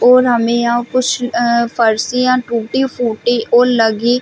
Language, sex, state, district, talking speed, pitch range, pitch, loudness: Hindi, female, Chhattisgarh, Bilaspur, 115 wpm, 235-250 Hz, 240 Hz, -14 LUFS